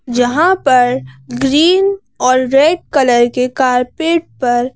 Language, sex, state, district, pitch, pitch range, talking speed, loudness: Hindi, female, Madhya Pradesh, Bhopal, 255 Hz, 245-325 Hz, 115 wpm, -13 LUFS